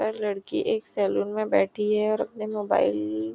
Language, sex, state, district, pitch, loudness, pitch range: Hindi, female, Maharashtra, Nagpur, 210 Hz, -26 LUFS, 195-215 Hz